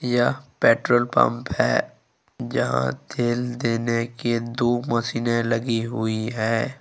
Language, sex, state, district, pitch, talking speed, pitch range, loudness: Hindi, male, Jharkhand, Ranchi, 115 Hz, 115 wpm, 115-120 Hz, -23 LUFS